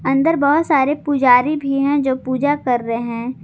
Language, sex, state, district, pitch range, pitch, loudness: Hindi, female, Jharkhand, Garhwa, 255-290 Hz, 275 Hz, -17 LUFS